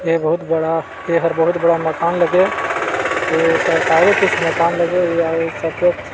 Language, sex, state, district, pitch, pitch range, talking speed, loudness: Chhattisgarhi, male, Chhattisgarh, Balrampur, 170 Hz, 165-175 Hz, 155 wpm, -16 LUFS